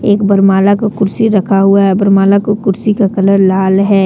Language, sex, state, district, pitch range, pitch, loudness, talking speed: Hindi, female, Jharkhand, Deoghar, 195-205 Hz, 200 Hz, -10 LUFS, 235 wpm